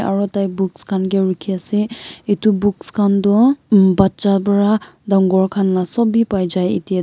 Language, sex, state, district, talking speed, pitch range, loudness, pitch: Nagamese, male, Nagaland, Kohima, 195 wpm, 190-205 Hz, -16 LUFS, 195 Hz